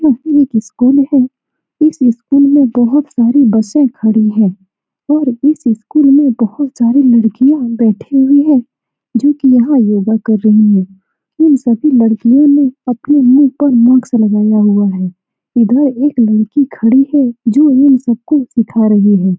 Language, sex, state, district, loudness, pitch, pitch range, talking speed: Hindi, female, Bihar, Saran, -10 LUFS, 250 Hz, 220-280 Hz, 165 wpm